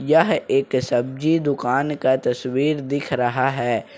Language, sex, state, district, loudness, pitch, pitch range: Hindi, male, Jharkhand, Ranchi, -21 LUFS, 135 Hz, 125-145 Hz